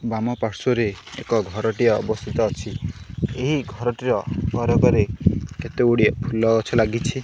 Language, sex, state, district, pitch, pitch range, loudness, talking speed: Odia, male, Odisha, Khordha, 115 Hz, 110-125 Hz, -22 LUFS, 100 wpm